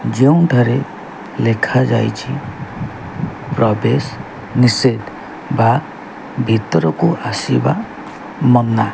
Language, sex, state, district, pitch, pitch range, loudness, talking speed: Odia, male, Odisha, Khordha, 120 Hz, 110-130 Hz, -16 LUFS, 60 wpm